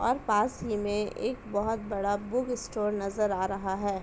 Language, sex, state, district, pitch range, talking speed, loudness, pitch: Hindi, female, Uttar Pradesh, Etah, 200-225 Hz, 195 wpm, -30 LUFS, 210 Hz